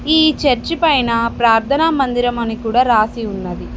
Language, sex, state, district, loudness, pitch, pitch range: Telugu, female, Telangana, Mahabubabad, -15 LUFS, 240 Hz, 225-280 Hz